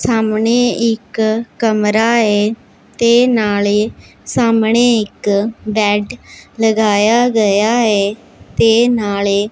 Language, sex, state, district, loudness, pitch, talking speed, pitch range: Punjabi, female, Punjab, Pathankot, -14 LUFS, 220 Hz, 90 wpm, 210-230 Hz